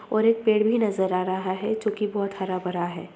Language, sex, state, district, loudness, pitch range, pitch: Hindi, female, Bihar, Sitamarhi, -25 LUFS, 185-220 Hz, 200 Hz